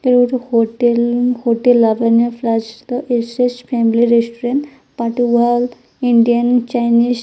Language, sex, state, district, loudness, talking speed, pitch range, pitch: Odia, female, Odisha, Sambalpur, -15 LUFS, 115 wpm, 235-245 Hz, 240 Hz